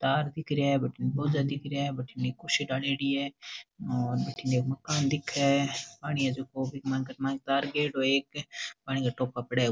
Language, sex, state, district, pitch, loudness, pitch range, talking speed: Marwari, male, Rajasthan, Nagaur, 135 Hz, -30 LUFS, 130-140 Hz, 215 wpm